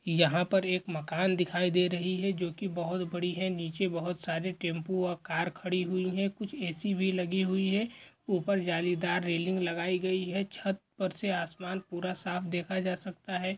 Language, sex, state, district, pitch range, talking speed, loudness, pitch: Hindi, male, Chhattisgarh, Korba, 175-190 Hz, 200 wpm, -32 LUFS, 180 Hz